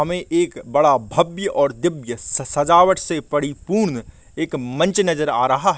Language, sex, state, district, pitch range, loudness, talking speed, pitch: Hindi, male, Jharkhand, Sahebganj, 135-175 Hz, -19 LUFS, 165 wpm, 155 Hz